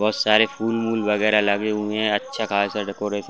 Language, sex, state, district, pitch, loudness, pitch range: Hindi, male, Chhattisgarh, Bastar, 105 Hz, -21 LUFS, 105-110 Hz